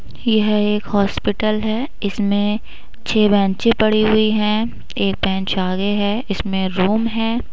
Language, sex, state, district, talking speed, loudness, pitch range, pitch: Hindi, female, Uttar Pradesh, Budaun, 135 wpm, -18 LUFS, 200-220 Hz, 210 Hz